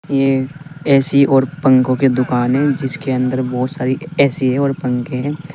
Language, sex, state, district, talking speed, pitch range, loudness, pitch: Hindi, male, Uttar Pradesh, Saharanpur, 175 wpm, 130-140 Hz, -16 LUFS, 135 Hz